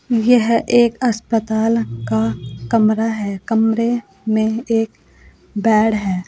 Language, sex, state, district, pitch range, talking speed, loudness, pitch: Hindi, female, Uttar Pradesh, Saharanpur, 210-230 Hz, 105 wpm, -17 LUFS, 225 Hz